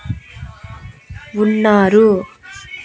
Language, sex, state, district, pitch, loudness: Telugu, female, Andhra Pradesh, Annamaya, 195 Hz, -13 LUFS